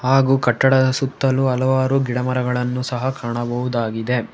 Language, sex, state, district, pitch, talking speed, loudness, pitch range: Kannada, male, Karnataka, Bangalore, 125 Hz, 95 wpm, -19 LUFS, 125-130 Hz